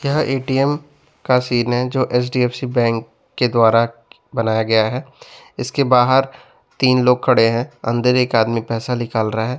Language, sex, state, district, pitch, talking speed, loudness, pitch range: Hindi, male, Bihar, West Champaran, 125 Hz, 165 wpm, -17 LUFS, 115-130 Hz